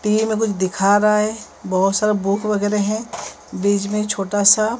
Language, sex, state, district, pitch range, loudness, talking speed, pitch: Hindi, female, Maharashtra, Mumbai Suburban, 200-215 Hz, -18 LUFS, 185 wpm, 210 Hz